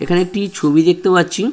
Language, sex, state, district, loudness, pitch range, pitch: Bengali, male, West Bengal, Purulia, -15 LUFS, 175-195 Hz, 180 Hz